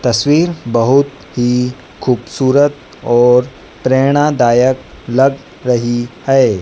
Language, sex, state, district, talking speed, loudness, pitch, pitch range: Hindi, female, Madhya Pradesh, Dhar, 80 wpm, -13 LUFS, 125 Hz, 120-135 Hz